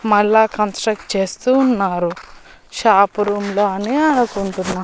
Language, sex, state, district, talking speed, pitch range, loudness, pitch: Telugu, female, Andhra Pradesh, Annamaya, 100 wpm, 195-220 Hz, -17 LUFS, 205 Hz